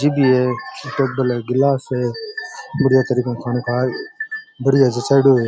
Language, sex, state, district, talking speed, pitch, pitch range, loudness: Rajasthani, male, Rajasthan, Churu, 155 wpm, 130 Hz, 125-145 Hz, -18 LUFS